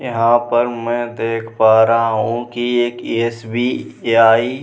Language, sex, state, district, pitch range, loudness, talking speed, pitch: Hindi, male, Bihar, Vaishali, 115-120 Hz, -16 LUFS, 155 wpm, 115 Hz